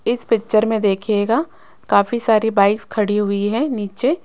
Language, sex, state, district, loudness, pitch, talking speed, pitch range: Hindi, female, Rajasthan, Jaipur, -18 LUFS, 220 Hz, 155 wpm, 205-235 Hz